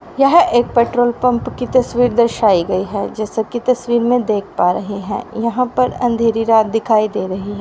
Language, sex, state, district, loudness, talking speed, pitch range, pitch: Hindi, female, Haryana, Rohtak, -16 LUFS, 195 wpm, 215-245 Hz, 235 Hz